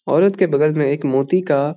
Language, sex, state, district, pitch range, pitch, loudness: Hindi, male, Bihar, Bhagalpur, 140-180 Hz, 150 Hz, -17 LUFS